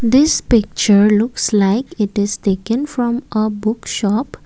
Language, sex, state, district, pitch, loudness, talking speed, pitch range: English, female, Assam, Kamrup Metropolitan, 215 Hz, -16 LUFS, 150 wpm, 205-240 Hz